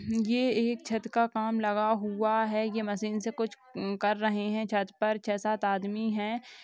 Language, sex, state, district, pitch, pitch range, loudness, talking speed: Hindi, female, Chhattisgarh, Rajnandgaon, 220 Hz, 210-225 Hz, -30 LUFS, 200 wpm